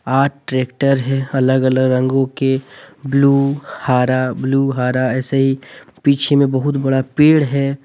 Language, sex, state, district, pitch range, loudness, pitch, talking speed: Hindi, male, Jharkhand, Deoghar, 130-140 Hz, -16 LUFS, 135 Hz, 145 wpm